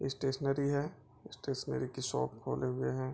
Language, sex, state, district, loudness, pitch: Hindi, male, Bihar, Bhagalpur, -36 LUFS, 135 Hz